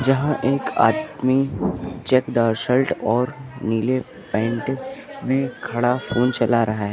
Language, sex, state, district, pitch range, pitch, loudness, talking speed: Hindi, male, Uttar Pradesh, Lucknow, 115-135 Hz, 125 Hz, -21 LUFS, 120 wpm